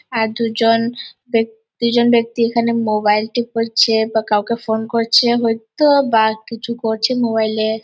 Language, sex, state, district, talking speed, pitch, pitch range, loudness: Bengali, female, West Bengal, Purulia, 160 wpm, 230 Hz, 220-235 Hz, -16 LUFS